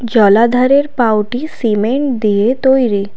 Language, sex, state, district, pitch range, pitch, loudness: Bengali, female, Assam, Kamrup Metropolitan, 215-265 Hz, 235 Hz, -13 LUFS